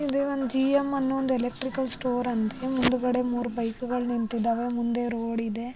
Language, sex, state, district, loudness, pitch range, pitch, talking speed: Kannada, female, Karnataka, Raichur, -26 LUFS, 235-265 Hz, 245 Hz, 165 wpm